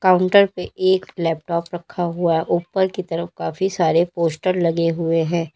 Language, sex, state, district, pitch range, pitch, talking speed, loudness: Hindi, female, Uttar Pradesh, Lalitpur, 165-185 Hz, 170 Hz, 160 wpm, -20 LUFS